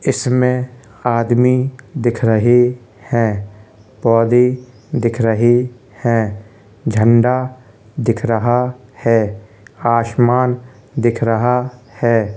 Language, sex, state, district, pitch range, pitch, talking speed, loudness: Hindi, male, Uttar Pradesh, Hamirpur, 110-125 Hz, 120 Hz, 80 wpm, -16 LUFS